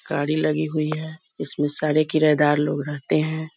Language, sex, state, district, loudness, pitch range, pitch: Hindi, female, Bihar, East Champaran, -22 LUFS, 150-155 Hz, 155 Hz